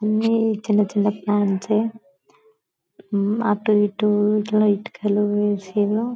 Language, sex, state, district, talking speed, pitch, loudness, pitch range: Telugu, male, Telangana, Karimnagar, 90 wpm, 210 Hz, -21 LUFS, 205-220 Hz